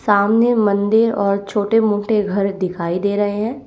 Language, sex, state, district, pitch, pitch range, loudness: Hindi, female, Uttar Pradesh, Lalitpur, 205 Hz, 200-220 Hz, -17 LUFS